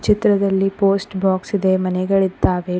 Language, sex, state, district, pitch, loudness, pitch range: Kannada, female, Karnataka, Koppal, 195 Hz, -18 LUFS, 185-200 Hz